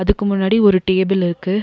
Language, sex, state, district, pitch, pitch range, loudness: Tamil, female, Tamil Nadu, Nilgiris, 195 Hz, 185-205 Hz, -16 LUFS